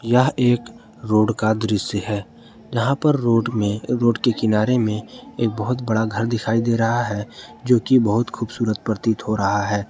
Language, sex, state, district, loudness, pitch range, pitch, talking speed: Hindi, male, Jharkhand, Ranchi, -20 LUFS, 105-120 Hz, 115 Hz, 180 wpm